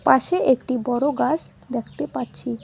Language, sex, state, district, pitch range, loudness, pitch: Bengali, female, West Bengal, Cooch Behar, 225-260 Hz, -23 LUFS, 245 Hz